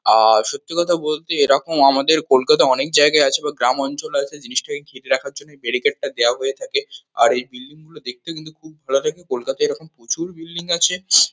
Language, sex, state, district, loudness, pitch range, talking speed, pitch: Bengali, male, West Bengal, North 24 Parganas, -18 LUFS, 135-180 Hz, 190 wpm, 155 Hz